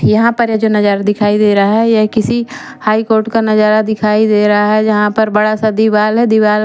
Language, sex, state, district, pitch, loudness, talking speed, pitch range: Hindi, female, Chandigarh, Chandigarh, 215 Hz, -12 LUFS, 215 wpm, 210-220 Hz